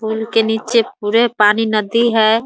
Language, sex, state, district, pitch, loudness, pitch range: Hindi, female, Bihar, Muzaffarpur, 220 Hz, -15 LUFS, 215-230 Hz